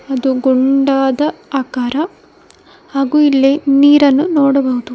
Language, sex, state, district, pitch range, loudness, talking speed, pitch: Kannada, female, Karnataka, Koppal, 265-295 Hz, -13 LUFS, 85 wpm, 275 Hz